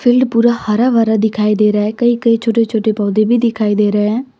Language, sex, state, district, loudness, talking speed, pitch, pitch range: Hindi, female, Jharkhand, Deoghar, -14 LUFS, 245 wpm, 220 Hz, 210-235 Hz